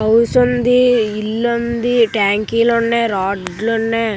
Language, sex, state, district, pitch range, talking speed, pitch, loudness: Telugu, male, Andhra Pradesh, Visakhapatnam, 215-235 Hz, 100 wpm, 230 Hz, -15 LUFS